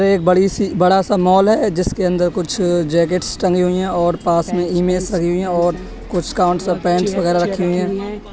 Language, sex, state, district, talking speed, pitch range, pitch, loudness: Hindi, male, Uttar Pradesh, Etah, 210 wpm, 175-190 Hz, 180 Hz, -16 LUFS